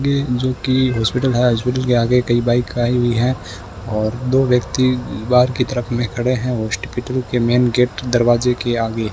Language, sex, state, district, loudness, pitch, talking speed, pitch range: Hindi, male, Rajasthan, Bikaner, -17 LUFS, 125 Hz, 185 wpm, 120-125 Hz